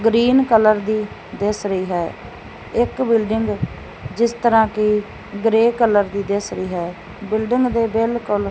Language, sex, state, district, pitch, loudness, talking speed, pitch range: Punjabi, male, Punjab, Fazilka, 215 Hz, -19 LUFS, 150 wpm, 205-230 Hz